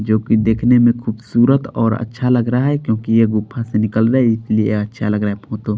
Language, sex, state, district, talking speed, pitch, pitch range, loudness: Hindi, male, Bihar, Patna, 230 wpm, 115 Hz, 110-120 Hz, -16 LUFS